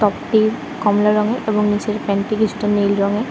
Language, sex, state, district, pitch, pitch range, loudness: Bengali, male, West Bengal, Kolkata, 210 Hz, 205-220 Hz, -18 LUFS